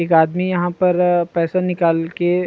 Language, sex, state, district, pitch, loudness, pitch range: Chhattisgarhi, male, Chhattisgarh, Rajnandgaon, 175 Hz, -17 LUFS, 170-180 Hz